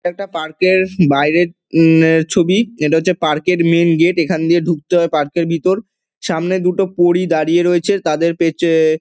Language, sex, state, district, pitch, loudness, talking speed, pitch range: Bengali, male, West Bengal, Dakshin Dinajpur, 170 Hz, -14 LUFS, 185 wpm, 160-185 Hz